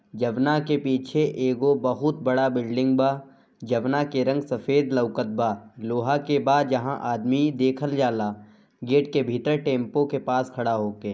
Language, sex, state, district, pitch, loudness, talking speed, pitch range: Bhojpuri, male, Bihar, Gopalganj, 130 Hz, -24 LUFS, 165 wpm, 120-140 Hz